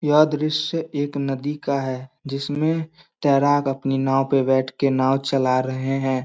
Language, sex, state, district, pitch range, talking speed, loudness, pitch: Hindi, male, Bihar, Samastipur, 135-150 Hz, 155 wpm, -22 LUFS, 140 Hz